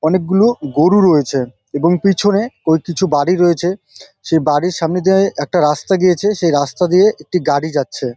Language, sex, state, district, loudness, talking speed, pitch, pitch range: Bengali, male, West Bengal, Jalpaiguri, -14 LUFS, 185 wpm, 175 Hz, 150-190 Hz